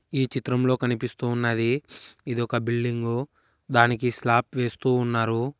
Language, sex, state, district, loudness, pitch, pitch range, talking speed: Telugu, male, Telangana, Hyderabad, -24 LUFS, 120 Hz, 120-125 Hz, 120 wpm